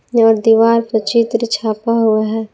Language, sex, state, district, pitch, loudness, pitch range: Hindi, female, Jharkhand, Palamu, 225 Hz, -14 LUFS, 220-230 Hz